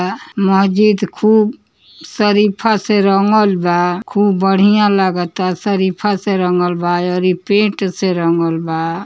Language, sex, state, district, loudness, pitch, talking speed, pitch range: Hindi, female, Uttar Pradesh, Ghazipur, -14 LUFS, 195 Hz, 120 wpm, 180-210 Hz